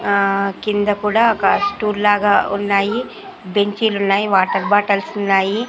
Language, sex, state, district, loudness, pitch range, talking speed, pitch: Telugu, female, Andhra Pradesh, Sri Satya Sai, -17 LUFS, 200-210 Hz, 125 wpm, 205 Hz